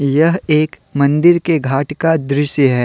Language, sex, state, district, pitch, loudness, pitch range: Hindi, male, Jharkhand, Deoghar, 150 Hz, -14 LUFS, 140-165 Hz